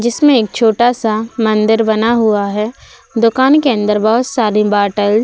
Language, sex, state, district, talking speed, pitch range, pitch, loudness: Hindi, female, Uttar Pradesh, Budaun, 170 wpm, 215-240 Hz, 220 Hz, -13 LUFS